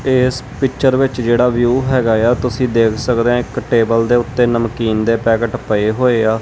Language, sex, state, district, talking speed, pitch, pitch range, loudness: Punjabi, male, Punjab, Kapurthala, 195 wpm, 120 Hz, 115-125 Hz, -15 LUFS